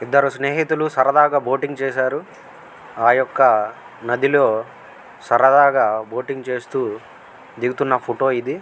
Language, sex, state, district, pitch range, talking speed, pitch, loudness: Telugu, male, Andhra Pradesh, Guntur, 125-140 Hz, 105 wpm, 135 Hz, -18 LUFS